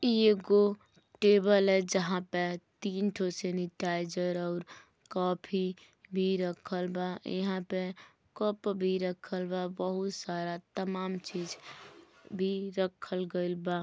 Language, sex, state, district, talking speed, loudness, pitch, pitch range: Bhojpuri, female, Uttar Pradesh, Gorakhpur, 120 wpm, -32 LUFS, 185 Hz, 180-195 Hz